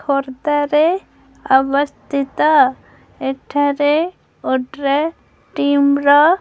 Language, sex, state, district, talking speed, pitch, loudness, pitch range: Odia, female, Odisha, Khordha, 85 wpm, 285 Hz, -16 LUFS, 275-305 Hz